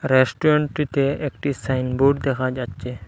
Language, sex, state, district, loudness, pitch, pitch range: Bengali, male, Assam, Hailakandi, -21 LUFS, 135 Hz, 130-140 Hz